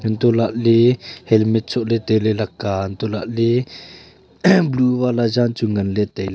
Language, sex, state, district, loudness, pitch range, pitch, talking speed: Wancho, male, Arunachal Pradesh, Longding, -18 LUFS, 110-120 Hz, 115 Hz, 200 wpm